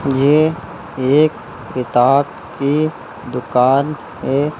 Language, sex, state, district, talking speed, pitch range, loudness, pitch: Hindi, male, Uttar Pradesh, Lucknow, 80 wpm, 130-150 Hz, -16 LUFS, 140 Hz